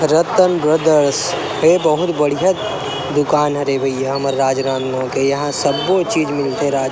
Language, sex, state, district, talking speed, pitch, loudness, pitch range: Chhattisgarhi, male, Chhattisgarh, Rajnandgaon, 145 wpm, 145 Hz, -16 LUFS, 135-160 Hz